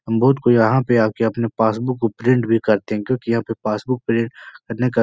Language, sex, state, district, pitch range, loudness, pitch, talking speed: Hindi, male, Uttar Pradesh, Etah, 110-125 Hz, -19 LUFS, 115 Hz, 240 wpm